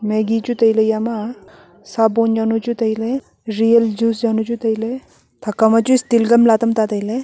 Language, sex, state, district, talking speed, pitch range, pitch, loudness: Wancho, female, Arunachal Pradesh, Longding, 165 wpm, 220-235 Hz, 225 Hz, -17 LUFS